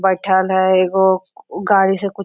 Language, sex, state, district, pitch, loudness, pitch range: Hindi, female, Jharkhand, Sahebganj, 190 Hz, -15 LUFS, 190-195 Hz